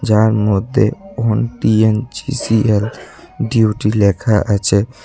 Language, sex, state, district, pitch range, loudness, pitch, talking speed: Bengali, male, Tripura, West Tripura, 105-115 Hz, -15 LUFS, 110 Hz, 70 wpm